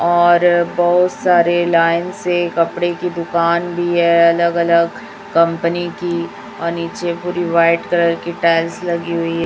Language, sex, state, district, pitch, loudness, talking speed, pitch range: Hindi, female, Chhattisgarh, Raipur, 170 Hz, -16 LUFS, 150 wpm, 170-175 Hz